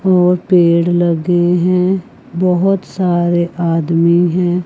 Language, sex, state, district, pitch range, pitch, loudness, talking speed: Hindi, female, Chandigarh, Chandigarh, 170-180 Hz, 175 Hz, -13 LUFS, 105 wpm